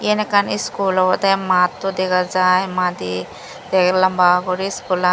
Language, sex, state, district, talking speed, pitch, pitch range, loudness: Chakma, female, Tripura, Dhalai, 140 wpm, 185 Hz, 180-195 Hz, -17 LUFS